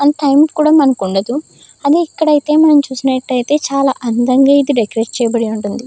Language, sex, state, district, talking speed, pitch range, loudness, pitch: Telugu, female, Andhra Pradesh, Krishna, 155 wpm, 240-295 Hz, -13 LUFS, 270 Hz